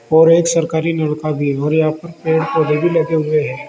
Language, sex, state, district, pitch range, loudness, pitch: Hindi, male, Uttar Pradesh, Saharanpur, 155-165 Hz, -16 LUFS, 160 Hz